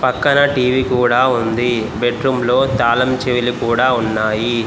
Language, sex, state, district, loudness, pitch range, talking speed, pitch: Telugu, male, Telangana, Komaram Bheem, -15 LUFS, 120-130 Hz, 140 wpm, 120 Hz